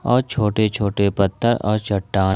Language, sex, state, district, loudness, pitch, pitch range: Hindi, male, Jharkhand, Ranchi, -20 LUFS, 105 Hz, 100-115 Hz